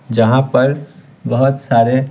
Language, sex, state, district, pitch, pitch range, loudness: Hindi, male, Bihar, Patna, 135 Hz, 125-140 Hz, -14 LUFS